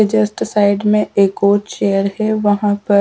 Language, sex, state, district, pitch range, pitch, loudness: Hindi, female, Punjab, Pathankot, 200-210 Hz, 205 Hz, -15 LUFS